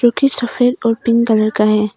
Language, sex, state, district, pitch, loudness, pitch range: Hindi, female, Arunachal Pradesh, Papum Pare, 235 Hz, -15 LUFS, 215-245 Hz